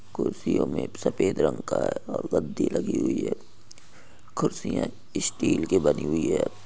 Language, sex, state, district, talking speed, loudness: Hindi, male, Bihar, Saharsa, 160 wpm, -27 LUFS